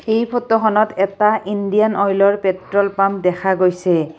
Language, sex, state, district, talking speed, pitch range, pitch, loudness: Assamese, female, Assam, Kamrup Metropolitan, 130 wpm, 190-215 Hz, 200 Hz, -17 LUFS